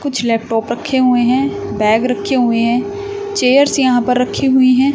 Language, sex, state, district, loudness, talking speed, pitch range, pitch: Hindi, female, Haryana, Charkhi Dadri, -14 LUFS, 180 wpm, 240-275 Hz, 255 Hz